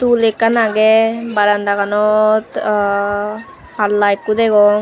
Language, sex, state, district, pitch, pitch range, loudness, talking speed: Chakma, female, Tripura, Unakoti, 215 Hz, 205-225 Hz, -14 LUFS, 110 wpm